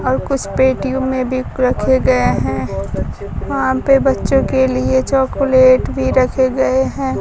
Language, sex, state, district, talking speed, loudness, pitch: Hindi, female, Bihar, Kaimur, 150 wpm, -15 LUFS, 255 Hz